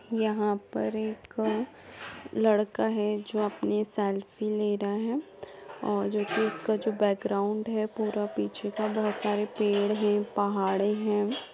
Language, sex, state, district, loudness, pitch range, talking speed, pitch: Hindi, female, Bihar, Lakhisarai, -29 LUFS, 205-215 Hz, 140 wpm, 210 Hz